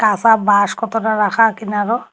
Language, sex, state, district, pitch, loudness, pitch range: Bengali, female, Assam, Hailakandi, 220 Hz, -15 LUFS, 210-225 Hz